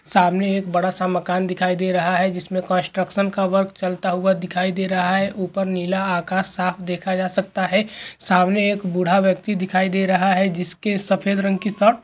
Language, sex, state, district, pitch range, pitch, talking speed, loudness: Hindi, male, West Bengal, Dakshin Dinajpur, 180-195 Hz, 185 Hz, 215 wpm, -20 LUFS